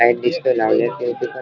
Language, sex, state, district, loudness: Marathi, male, Maharashtra, Dhule, -18 LUFS